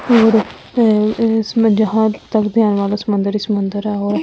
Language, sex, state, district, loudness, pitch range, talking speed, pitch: Hindi, female, Delhi, New Delhi, -15 LUFS, 205-225 Hz, 155 wpm, 215 Hz